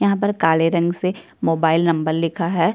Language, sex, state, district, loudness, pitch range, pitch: Hindi, female, Chhattisgarh, Kabirdham, -19 LUFS, 165-185 Hz, 170 Hz